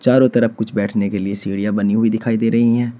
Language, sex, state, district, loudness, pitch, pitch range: Hindi, male, Uttar Pradesh, Shamli, -17 LUFS, 110 Hz, 100-120 Hz